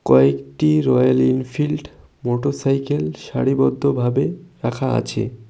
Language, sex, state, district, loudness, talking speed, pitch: Bengali, male, West Bengal, Cooch Behar, -19 LUFS, 85 wpm, 125 Hz